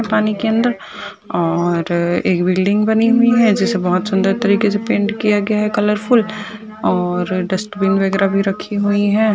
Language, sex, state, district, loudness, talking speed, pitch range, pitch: Hindi, female, Rajasthan, Churu, -16 LUFS, 160 wpm, 190-215 Hz, 205 Hz